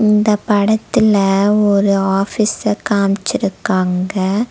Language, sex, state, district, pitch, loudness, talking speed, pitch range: Tamil, female, Tamil Nadu, Nilgiris, 205 Hz, -15 LUFS, 65 wpm, 195-210 Hz